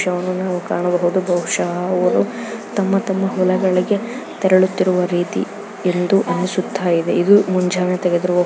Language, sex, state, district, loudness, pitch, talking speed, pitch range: Kannada, female, Karnataka, Raichur, -18 LUFS, 185 Hz, 105 wpm, 180-195 Hz